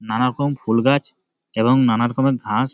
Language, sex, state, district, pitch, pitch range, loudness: Bengali, male, West Bengal, Malda, 125 Hz, 115-135 Hz, -19 LUFS